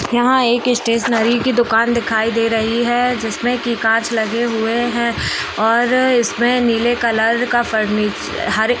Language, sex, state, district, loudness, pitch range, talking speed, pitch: Hindi, female, Bihar, East Champaran, -16 LUFS, 225-240 Hz, 155 wpm, 235 Hz